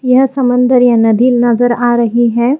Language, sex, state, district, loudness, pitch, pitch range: Hindi, female, Haryana, Jhajjar, -10 LUFS, 245 Hz, 235-250 Hz